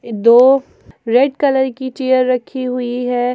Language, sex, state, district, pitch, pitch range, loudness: Hindi, female, Jharkhand, Garhwa, 255 Hz, 245-265 Hz, -15 LUFS